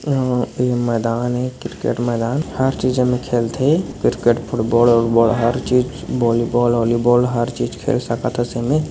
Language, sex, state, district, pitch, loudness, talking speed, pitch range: Chhattisgarhi, male, Chhattisgarh, Bilaspur, 120 Hz, -18 LUFS, 150 wpm, 120-125 Hz